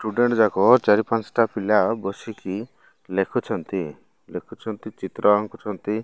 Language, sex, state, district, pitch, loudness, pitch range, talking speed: Odia, male, Odisha, Malkangiri, 105 Hz, -22 LUFS, 100-110 Hz, 100 wpm